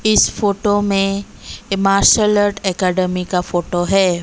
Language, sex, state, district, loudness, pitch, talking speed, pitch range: Hindi, female, Odisha, Malkangiri, -16 LUFS, 195 Hz, 140 wpm, 180-205 Hz